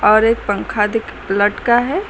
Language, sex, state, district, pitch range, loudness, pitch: Hindi, female, Uttar Pradesh, Lucknow, 210-240 Hz, -16 LUFS, 225 Hz